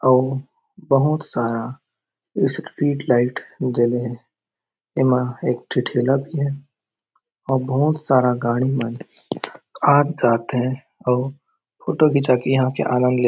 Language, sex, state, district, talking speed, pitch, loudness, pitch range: Chhattisgarhi, male, Chhattisgarh, Raigarh, 140 wpm, 130 Hz, -20 LUFS, 125-140 Hz